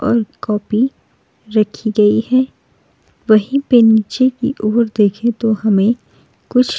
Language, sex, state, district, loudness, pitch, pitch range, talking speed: Hindi, female, Uttar Pradesh, Jalaun, -15 LUFS, 225 Hz, 215-250 Hz, 135 wpm